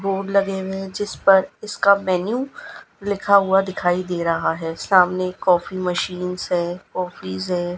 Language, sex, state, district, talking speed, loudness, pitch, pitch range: Hindi, female, Gujarat, Gandhinagar, 145 wpm, -20 LUFS, 185 Hz, 180-195 Hz